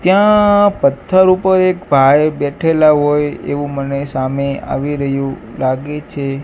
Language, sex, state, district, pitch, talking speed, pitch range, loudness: Gujarati, male, Gujarat, Gandhinagar, 145 Hz, 130 wpm, 140-185 Hz, -14 LUFS